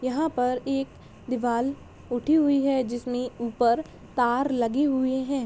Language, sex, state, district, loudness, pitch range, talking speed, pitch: Hindi, female, Jharkhand, Sahebganj, -26 LUFS, 245-275 Hz, 145 wpm, 255 Hz